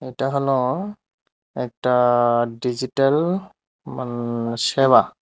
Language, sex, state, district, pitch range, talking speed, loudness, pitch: Bengali, male, Tripura, Unakoti, 120-135 Hz, 80 wpm, -21 LUFS, 125 Hz